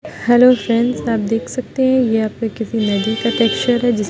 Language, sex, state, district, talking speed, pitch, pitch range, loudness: Hindi, female, Bihar, Muzaffarpur, 205 wpm, 230 Hz, 225-245 Hz, -16 LUFS